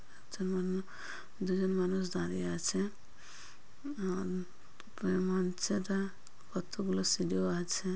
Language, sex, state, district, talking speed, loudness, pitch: Bengali, female, West Bengal, Purulia, 60 wpm, -35 LUFS, 185 Hz